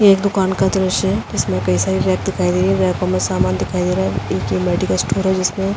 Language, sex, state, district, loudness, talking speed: Hindi, female, Uttar Pradesh, Jalaun, -17 LUFS, 280 wpm